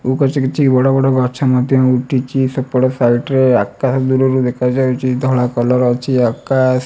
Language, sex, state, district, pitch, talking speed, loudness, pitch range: Odia, male, Odisha, Malkangiri, 130 Hz, 150 wpm, -14 LUFS, 125-130 Hz